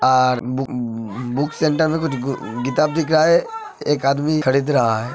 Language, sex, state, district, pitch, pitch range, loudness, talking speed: Hindi, male, Uttar Pradesh, Hamirpur, 135 Hz, 125-155 Hz, -19 LUFS, 150 wpm